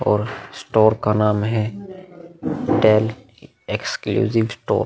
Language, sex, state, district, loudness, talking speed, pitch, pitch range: Hindi, male, Bihar, Vaishali, -20 LUFS, 110 wpm, 110 Hz, 105-130 Hz